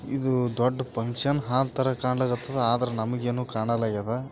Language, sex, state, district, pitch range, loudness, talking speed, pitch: Kannada, male, Karnataka, Bijapur, 120-130 Hz, -26 LUFS, 140 wpm, 125 Hz